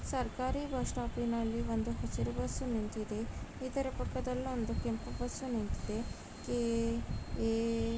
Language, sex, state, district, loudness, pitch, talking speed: Kannada, female, Karnataka, Raichur, -37 LUFS, 225 Hz, 120 wpm